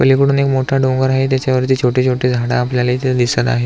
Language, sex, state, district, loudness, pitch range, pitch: Marathi, male, Maharashtra, Aurangabad, -15 LUFS, 125-130 Hz, 130 Hz